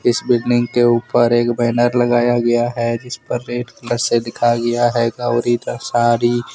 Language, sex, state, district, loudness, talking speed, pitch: Hindi, male, Jharkhand, Deoghar, -17 LUFS, 185 wpm, 120 Hz